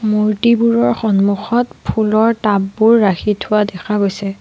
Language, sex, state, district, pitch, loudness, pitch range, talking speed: Assamese, female, Assam, Sonitpur, 210 Hz, -15 LUFS, 200-225 Hz, 120 wpm